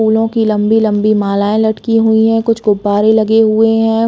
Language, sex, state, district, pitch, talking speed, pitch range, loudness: Hindi, female, Chhattisgarh, Bilaspur, 220 Hz, 190 wpm, 215-225 Hz, -12 LUFS